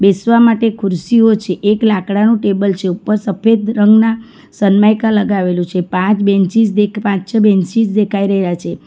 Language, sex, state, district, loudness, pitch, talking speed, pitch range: Gujarati, female, Gujarat, Valsad, -13 LUFS, 210 Hz, 155 wpm, 195-220 Hz